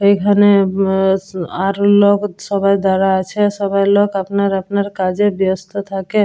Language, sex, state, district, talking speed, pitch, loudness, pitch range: Bengali, female, West Bengal, Jalpaiguri, 135 wpm, 200 Hz, -15 LUFS, 190-205 Hz